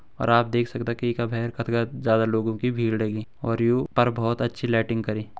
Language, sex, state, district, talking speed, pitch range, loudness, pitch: Garhwali, male, Uttarakhand, Uttarkashi, 235 wpm, 115-120 Hz, -24 LUFS, 115 Hz